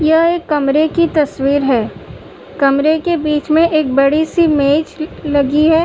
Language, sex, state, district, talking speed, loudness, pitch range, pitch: Hindi, female, Uttar Pradesh, Budaun, 165 wpm, -14 LUFS, 285-320 Hz, 305 Hz